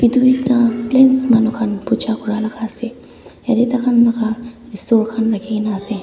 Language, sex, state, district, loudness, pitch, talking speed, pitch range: Nagamese, female, Nagaland, Dimapur, -16 LUFS, 230 Hz, 170 wpm, 220-245 Hz